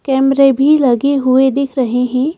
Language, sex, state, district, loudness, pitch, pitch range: Hindi, female, Madhya Pradesh, Bhopal, -12 LUFS, 270 Hz, 255-275 Hz